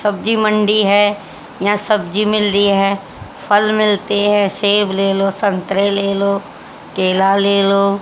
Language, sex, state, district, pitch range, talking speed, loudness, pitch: Hindi, female, Haryana, Charkhi Dadri, 195-210 Hz, 150 wpm, -15 LUFS, 200 Hz